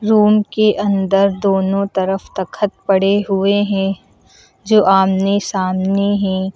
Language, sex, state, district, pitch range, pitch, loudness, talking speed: Hindi, female, Uttar Pradesh, Lucknow, 195-205 Hz, 195 Hz, -15 LUFS, 120 wpm